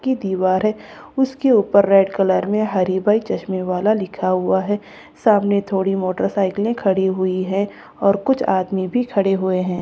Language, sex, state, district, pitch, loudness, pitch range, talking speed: Hindi, female, Bihar, Katihar, 195 Hz, -18 LUFS, 185-210 Hz, 165 wpm